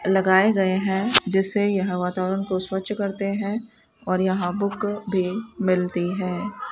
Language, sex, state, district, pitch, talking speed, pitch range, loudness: Hindi, female, Rajasthan, Bikaner, 195 Hz, 145 wpm, 185-205 Hz, -23 LUFS